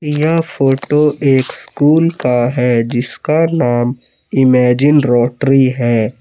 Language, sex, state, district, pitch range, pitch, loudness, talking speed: Hindi, male, Jharkhand, Palamu, 125-150 Hz, 135 Hz, -13 LUFS, 105 wpm